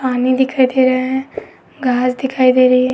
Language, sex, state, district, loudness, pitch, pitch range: Hindi, female, Uttar Pradesh, Etah, -14 LUFS, 255 Hz, 255-260 Hz